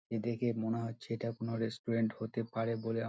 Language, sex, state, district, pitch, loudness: Bengali, male, West Bengal, Dakshin Dinajpur, 115 Hz, -37 LUFS